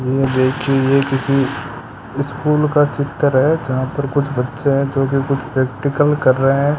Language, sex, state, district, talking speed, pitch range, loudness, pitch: Hindi, male, Rajasthan, Bikaner, 175 wpm, 130-145 Hz, -17 LUFS, 135 Hz